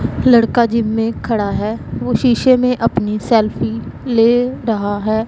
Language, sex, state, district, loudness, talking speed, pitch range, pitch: Hindi, female, Punjab, Pathankot, -15 LUFS, 150 wpm, 215-240 Hz, 225 Hz